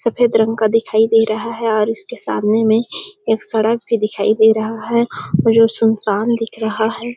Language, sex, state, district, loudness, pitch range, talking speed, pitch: Hindi, female, Chhattisgarh, Sarguja, -16 LUFS, 220-230 Hz, 200 wpm, 225 Hz